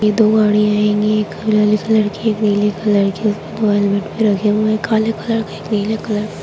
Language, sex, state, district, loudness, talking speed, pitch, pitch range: Hindi, female, Bihar, Sitamarhi, -16 LUFS, 250 wpm, 210 Hz, 210-215 Hz